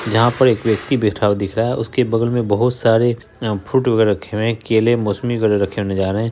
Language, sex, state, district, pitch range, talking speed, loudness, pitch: Hindi, male, Bihar, Saharsa, 105-120 Hz, 245 wpm, -17 LUFS, 115 Hz